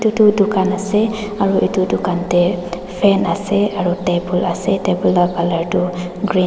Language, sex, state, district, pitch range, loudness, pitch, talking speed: Nagamese, female, Nagaland, Dimapur, 175-200 Hz, -17 LUFS, 185 Hz, 165 wpm